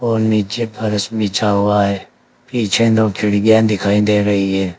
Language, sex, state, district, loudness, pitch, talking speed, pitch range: Hindi, male, Uttar Pradesh, Saharanpur, -16 LUFS, 105 Hz, 165 wpm, 100-110 Hz